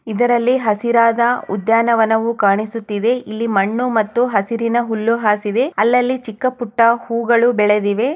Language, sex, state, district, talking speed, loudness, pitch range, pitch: Kannada, female, Karnataka, Chamarajanagar, 120 wpm, -16 LUFS, 215-240 Hz, 230 Hz